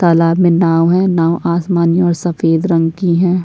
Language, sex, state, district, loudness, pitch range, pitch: Hindi, female, Chhattisgarh, Sukma, -13 LUFS, 165-175 Hz, 170 Hz